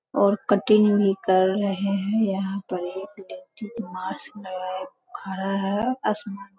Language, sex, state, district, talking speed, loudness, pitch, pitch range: Hindi, female, Bihar, Sitamarhi, 135 wpm, -24 LUFS, 195 Hz, 190-210 Hz